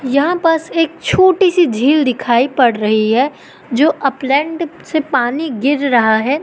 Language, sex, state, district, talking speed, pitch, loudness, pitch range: Hindi, female, Madhya Pradesh, Katni, 160 wpm, 280 Hz, -14 LUFS, 245-320 Hz